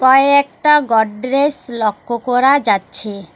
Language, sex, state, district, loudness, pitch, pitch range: Bengali, female, West Bengal, Alipurduar, -14 LUFS, 255 Hz, 220-280 Hz